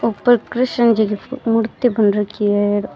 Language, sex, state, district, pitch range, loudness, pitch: Rajasthani, female, Rajasthan, Churu, 205-240 Hz, -17 LUFS, 225 Hz